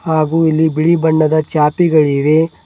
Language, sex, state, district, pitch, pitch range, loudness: Kannada, male, Karnataka, Bidar, 155 Hz, 155-160 Hz, -13 LUFS